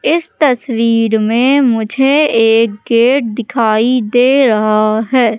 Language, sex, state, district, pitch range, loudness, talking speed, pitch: Hindi, female, Madhya Pradesh, Katni, 225-265 Hz, -12 LUFS, 110 wpm, 230 Hz